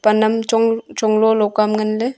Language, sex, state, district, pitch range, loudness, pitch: Wancho, female, Arunachal Pradesh, Longding, 215-225 Hz, -17 LUFS, 220 Hz